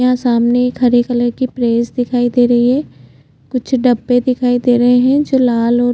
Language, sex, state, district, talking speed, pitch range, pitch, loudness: Hindi, female, Chhattisgarh, Jashpur, 190 wpm, 240-250 Hz, 245 Hz, -14 LUFS